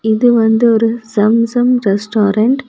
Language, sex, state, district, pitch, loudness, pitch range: Tamil, female, Tamil Nadu, Kanyakumari, 225 Hz, -12 LUFS, 215-240 Hz